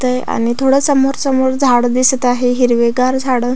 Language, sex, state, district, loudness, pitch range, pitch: Marathi, female, Maharashtra, Aurangabad, -13 LUFS, 245-265 Hz, 255 Hz